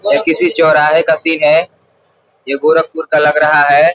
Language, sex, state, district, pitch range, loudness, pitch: Hindi, male, Uttar Pradesh, Gorakhpur, 150-165 Hz, -11 LUFS, 160 Hz